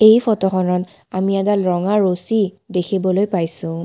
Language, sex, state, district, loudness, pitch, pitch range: Assamese, female, Assam, Kamrup Metropolitan, -18 LUFS, 190 Hz, 180-205 Hz